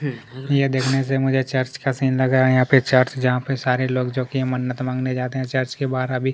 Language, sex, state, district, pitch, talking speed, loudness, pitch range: Hindi, male, Chhattisgarh, Kabirdham, 130 Hz, 235 wpm, -20 LUFS, 130-135 Hz